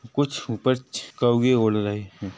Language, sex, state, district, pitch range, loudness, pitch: Hindi, male, Chhattisgarh, Rajnandgaon, 105-130 Hz, -23 LUFS, 120 Hz